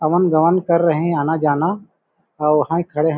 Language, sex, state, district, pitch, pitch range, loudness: Hindi, male, Chhattisgarh, Balrampur, 160 Hz, 150-170 Hz, -17 LUFS